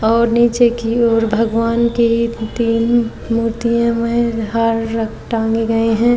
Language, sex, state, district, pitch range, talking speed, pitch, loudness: Hindi, female, Uttar Pradesh, Jyotiba Phule Nagar, 225-235 Hz, 135 wpm, 230 Hz, -16 LUFS